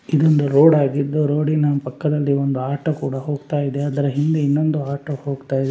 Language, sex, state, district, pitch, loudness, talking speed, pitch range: Kannada, male, Karnataka, Raichur, 145 Hz, -19 LUFS, 180 wpm, 140-150 Hz